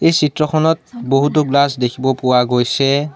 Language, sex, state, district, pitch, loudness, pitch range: Assamese, male, Assam, Sonitpur, 140 Hz, -15 LUFS, 125-150 Hz